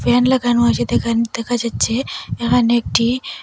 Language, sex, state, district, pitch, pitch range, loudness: Bengali, female, Assam, Hailakandi, 240 Hz, 230-245 Hz, -17 LUFS